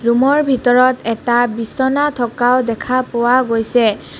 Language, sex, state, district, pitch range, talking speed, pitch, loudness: Assamese, female, Assam, Kamrup Metropolitan, 235-255 Hz, 130 wpm, 245 Hz, -15 LUFS